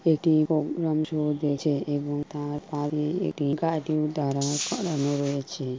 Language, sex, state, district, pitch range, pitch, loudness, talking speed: Bengali, female, West Bengal, Kolkata, 145-155 Hz, 150 Hz, -27 LUFS, 95 wpm